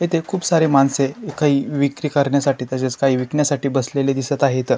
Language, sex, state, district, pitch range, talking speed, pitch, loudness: Marathi, male, Maharashtra, Chandrapur, 135-150 Hz, 150 wpm, 140 Hz, -19 LUFS